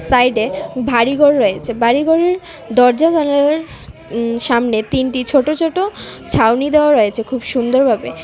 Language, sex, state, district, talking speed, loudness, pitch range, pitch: Bengali, female, Tripura, West Tripura, 140 wpm, -15 LUFS, 235-300 Hz, 260 Hz